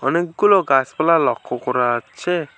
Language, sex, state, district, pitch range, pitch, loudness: Bengali, male, West Bengal, Alipurduar, 125-175 Hz, 165 Hz, -18 LUFS